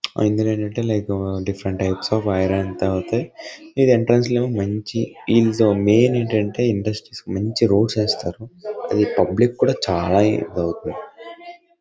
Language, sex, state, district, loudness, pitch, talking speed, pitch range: Telugu, male, Karnataka, Bellary, -20 LUFS, 110 Hz, 105 wpm, 100-120 Hz